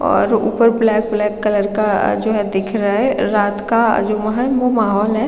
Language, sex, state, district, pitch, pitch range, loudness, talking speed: Hindi, female, Chhattisgarh, Raigarh, 215 Hz, 205-225 Hz, -16 LUFS, 195 wpm